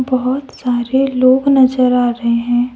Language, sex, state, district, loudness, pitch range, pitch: Hindi, female, Jharkhand, Deoghar, -14 LUFS, 245-260 Hz, 255 Hz